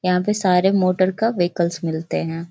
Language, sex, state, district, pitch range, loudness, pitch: Hindi, female, Bihar, Jahanabad, 170-190 Hz, -20 LUFS, 180 Hz